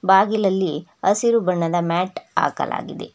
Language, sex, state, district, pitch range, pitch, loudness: Kannada, female, Karnataka, Bangalore, 175-200 Hz, 190 Hz, -20 LUFS